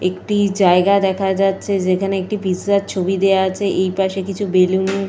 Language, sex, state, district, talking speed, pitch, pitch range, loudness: Bengali, female, Jharkhand, Jamtara, 165 wpm, 195 Hz, 185-195 Hz, -17 LUFS